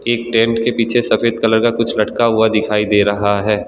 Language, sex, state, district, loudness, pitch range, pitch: Hindi, male, Gujarat, Valsad, -15 LUFS, 105-115 Hz, 115 Hz